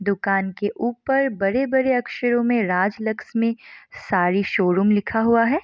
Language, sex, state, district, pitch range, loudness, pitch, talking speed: Hindi, female, Bihar, East Champaran, 195-240 Hz, -21 LUFS, 225 Hz, 140 wpm